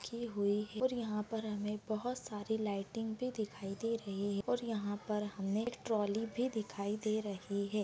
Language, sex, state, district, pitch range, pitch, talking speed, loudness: Hindi, female, Bihar, Bhagalpur, 205-225 Hz, 215 Hz, 200 wpm, -38 LUFS